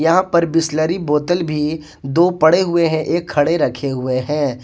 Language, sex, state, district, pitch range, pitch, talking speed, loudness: Hindi, male, Jharkhand, Ranchi, 145-170 Hz, 155 Hz, 180 wpm, -17 LUFS